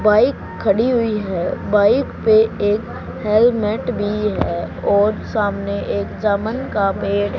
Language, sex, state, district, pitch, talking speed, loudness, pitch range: Hindi, male, Haryana, Charkhi Dadri, 210 Hz, 130 wpm, -18 LUFS, 200-220 Hz